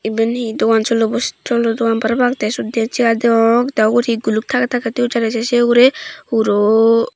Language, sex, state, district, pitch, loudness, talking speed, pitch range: Chakma, female, Tripura, Dhalai, 230 Hz, -15 LUFS, 185 wpm, 225-240 Hz